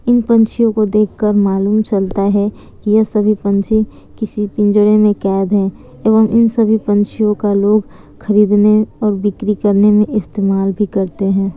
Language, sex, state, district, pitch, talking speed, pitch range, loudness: Hindi, female, Bihar, Kishanganj, 210 Hz, 165 wpm, 200-215 Hz, -14 LUFS